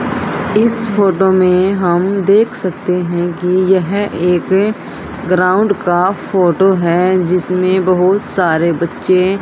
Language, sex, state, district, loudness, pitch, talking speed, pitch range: Hindi, female, Haryana, Rohtak, -13 LUFS, 185 Hz, 115 wpm, 180-195 Hz